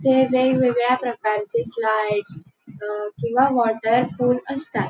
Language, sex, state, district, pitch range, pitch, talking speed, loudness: Marathi, female, Goa, North and South Goa, 210-250 Hz, 235 Hz, 110 wpm, -21 LUFS